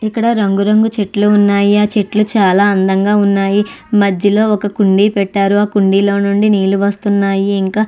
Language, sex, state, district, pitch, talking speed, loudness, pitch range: Telugu, female, Andhra Pradesh, Chittoor, 205 Hz, 150 wpm, -12 LUFS, 200-210 Hz